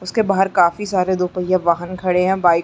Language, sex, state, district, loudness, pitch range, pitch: Hindi, female, Chhattisgarh, Sarguja, -17 LUFS, 180-190 Hz, 185 Hz